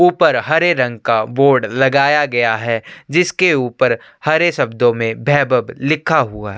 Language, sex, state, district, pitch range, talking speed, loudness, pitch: Hindi, male, Chhattisgarh, Sukma, 120-155 Hz, 155 wpm, -15 LUFS, 135 Hz